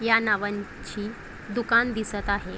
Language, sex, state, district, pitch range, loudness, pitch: Marathi, female, Maharashtra, Chandrapur, 205-230 Hz, -26 LUFS, 210 Hz